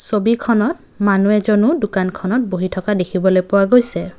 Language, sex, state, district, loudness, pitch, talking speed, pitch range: Assamese, male, Assam, Kamrup Metropolitan, -16 LUFS, 205 Hz, 130 wpm, 185-225 Hz